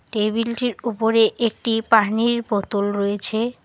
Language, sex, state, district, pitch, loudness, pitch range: Bengali, female, West Bengal, Alipurduar, 225 Hz, -20 LUFS, 210-235 Hz